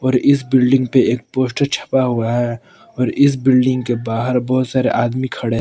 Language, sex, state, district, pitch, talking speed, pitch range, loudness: Hindi, male, Jharkhand, Palamu, 130 Hz, 195 wpm, 120-130 Hz, -16 LUFS